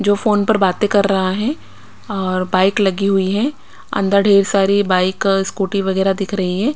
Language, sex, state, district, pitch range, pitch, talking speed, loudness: Hindi, female, Bihar, Patna, 190-205 Hz, 195 Hz, 205 wpm, -16 LUFS